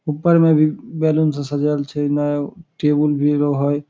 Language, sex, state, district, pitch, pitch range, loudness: Maithili, male, Bihar, Samastipur, 150 Hz, 145-155 Hz, -18 LUFS